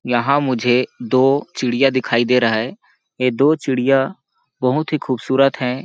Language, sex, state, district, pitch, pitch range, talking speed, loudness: Hindi, male, Chhattisgarh, Balrampur, 130 Hz, 125-135 Hz, 155 wpm, -17 LUFS